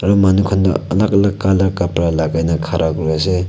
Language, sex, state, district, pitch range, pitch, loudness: Nagamese, male, Nagaland, Kohima, 80-95 Hz, 90 Hz, -15 LUFS